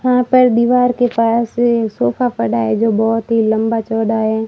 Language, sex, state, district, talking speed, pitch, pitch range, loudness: Hindi, female, Rajasthan, Barmer, 200 wpm, 225 Hz, 220-240 Hz, -15 LUFS